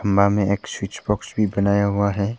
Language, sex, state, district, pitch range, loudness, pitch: Hindi, male, Arunachal Pradesh, Papum Pare, 100-105 Hz, -21 LUFS, 100 Hz